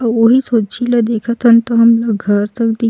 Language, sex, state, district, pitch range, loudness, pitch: Chhattisgarhi, female, Chhattisgarh, Sukma, 225-235 Hz, -13 LUFS, 230 Hz